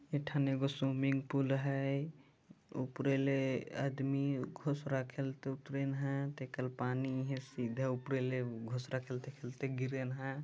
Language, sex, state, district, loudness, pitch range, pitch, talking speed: Chhattisgarhi, male, Chhattisgarh, Jashpur, -38 LUFS, 130-140 Hz, 135 Hz, 145 wpm